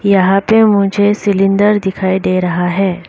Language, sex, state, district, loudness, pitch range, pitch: Hindi, female, Arunachal Pradesh, Lower Dibang Valley, -12 LUFS, 185-205 Hz, 195 Hz